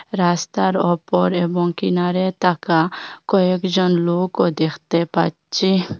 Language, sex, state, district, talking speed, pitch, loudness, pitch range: Bengali, female, Assam, Hailakandi, 90 wpm, 175 Hz, -19 LUFS, 170-185 Hz